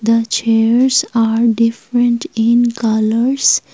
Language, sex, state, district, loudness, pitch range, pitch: English, female, Assam, Kamrup Metropolitan, -14 LUFS, 225-240 Hz, 230 Hz